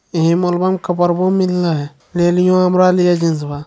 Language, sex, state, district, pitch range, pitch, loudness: Hindi, male, Bihar, Jamui, 165-185 Hz, 175 Hz, -15 LUFS